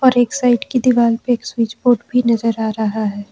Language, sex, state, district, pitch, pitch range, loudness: Hindi, female, Jharkhand, Ranchi, 235 Hz, 225-245 Hz, -16 LUFS